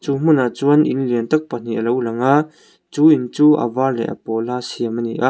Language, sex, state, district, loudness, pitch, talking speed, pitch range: Mizo, male, Mizoram, Aizawl, -17 LUFS, 130 Hz, 270 wpm, 120-150 Hz